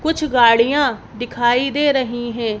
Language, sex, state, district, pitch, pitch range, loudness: Hindi, female, Madhya Pradesh, Bhopal, 245 Hz, 235-285 Hz, -16 LUFS